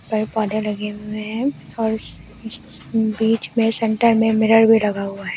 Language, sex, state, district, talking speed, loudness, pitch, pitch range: Hindi, female, Delhi, New Delhi, 165 wpm, -19 LUFS, 220 Hz, 215-225 Hz